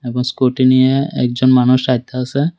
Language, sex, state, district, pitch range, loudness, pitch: Bengali, male, Tripura, West Tripura, 125-130 Hz, -14 LUFS, 130 Hz